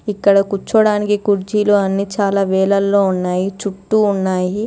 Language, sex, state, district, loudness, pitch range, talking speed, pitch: Telugu, female, Telangana, Hyderabad, -16 LUFS, 190-205 Hz, 115 wpm, 200 Hz